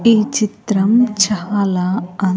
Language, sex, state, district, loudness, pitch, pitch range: Telugu, female, Andhra Pradesh, Sri Satya Sai, -16 LUFS, 210 Hz, 195-220 Hz